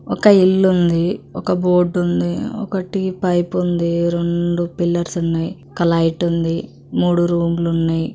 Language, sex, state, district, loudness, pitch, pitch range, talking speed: Telugu, female, Andhra Pradesh, Guntur, -18 LUFS, 175 Hz, 170-180 Hz, 105 wpm